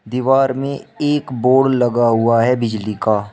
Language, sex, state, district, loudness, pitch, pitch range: Hindi, male, Uttar Pradesh, Shamli, -16 LUFS, 125 Hz, 115-135 Hz